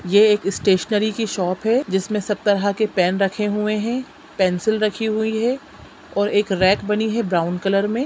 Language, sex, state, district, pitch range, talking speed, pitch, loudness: Hindi, female, Chhattisgarh, Sukma, 195-220 Hz, 195 wpm, 210 Hz, -20 LUFS